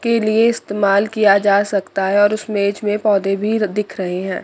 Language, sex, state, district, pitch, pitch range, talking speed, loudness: Hindi, female, Chandigarh, Chandigarh, 205 Hz, 200-215 Hz, 215 wpm, -17 LUFS